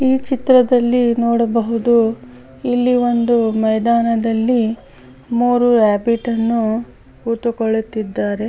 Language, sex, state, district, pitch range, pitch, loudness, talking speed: Kannada, female, Karnataka, Bellary, 220-240 Hz, 230 Hz, -16 LUFS, 70 wpm